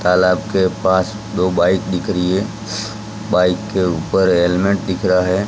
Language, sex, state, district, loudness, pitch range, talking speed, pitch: Hindi, male, Gujarat, Gandhinagar, -17 LUFS, 90-105 Hz, 165 wpm, 95 Hz